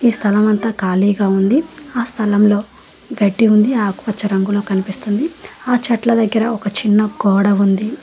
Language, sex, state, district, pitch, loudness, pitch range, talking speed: Telugu, female, Telangana, Hyderabad, 215 Hz, -15 LUFS, 205-235 Hz, 140 wpm